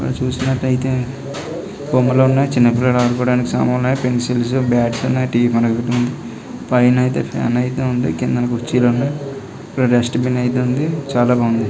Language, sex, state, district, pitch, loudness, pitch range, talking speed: Telugu, male, Andhra Pradesh, Visakhapatnam, 125 Hz, -17 LUFS, 120-130 Hz, 150 wpm